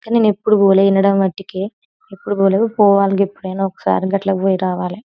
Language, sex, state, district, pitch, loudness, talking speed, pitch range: Telugu, female, Telangana, Nalgonda, 195 Hz, -16 LUFS, 155 wpm, 195-205 Hz